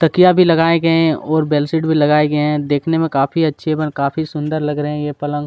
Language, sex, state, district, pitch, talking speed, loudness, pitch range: Hindi, male, Chhattisgarh, Kabirdham, 155 Hz, 240 wpm, -16 LUFS, 150-165 Hz